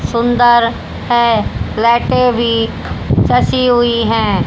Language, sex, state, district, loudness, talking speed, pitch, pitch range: Hindi, female, Haryana, Charkhi Dadri, -13 LUFS, 95 wpm, 235 Hz, 230-240 Hz